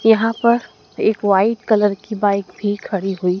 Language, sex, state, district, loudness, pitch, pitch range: Hindi, female, Madhya Pradesh, Dhar, -18 LUFS, 205 Hz, 195-220 Hz